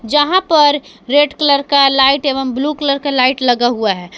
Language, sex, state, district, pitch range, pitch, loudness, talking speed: Hindi, female, Jharkhand, Palamu, 255-290 Hz, 275 Hz, -13 LUFS, 200 wpm